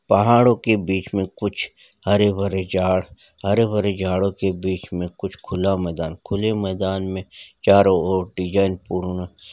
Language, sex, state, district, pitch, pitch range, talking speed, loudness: Hindi, male, Chhattisgarh, Rajnandgaon, 95 Hz, 95-100 Hz, 125 wpm, -21 LUFS